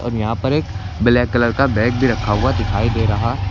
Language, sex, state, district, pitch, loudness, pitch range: Hindi, male, Uttar Pradesh, Lucknow, 115 Hz, -17 LUFS, 105-120 Hz